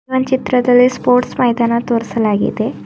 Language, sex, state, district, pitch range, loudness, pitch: Kannada, female, Karnataka, Bidar, 235-255 Hz, -14 LUFS, 245 Hz